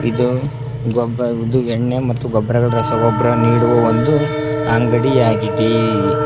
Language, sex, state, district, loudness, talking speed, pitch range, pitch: Kannada, male, Karnataka, Koppal, -16 LUFS, 95 wpm, 115-125 Hz, 120 Hz